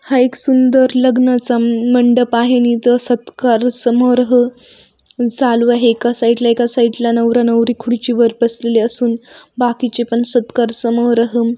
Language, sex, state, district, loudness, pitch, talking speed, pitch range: Marathi, female, Maharashtra, Sindhudurg, -13 LUFS, 240 Hz, 140 wpm, 235-250 Hz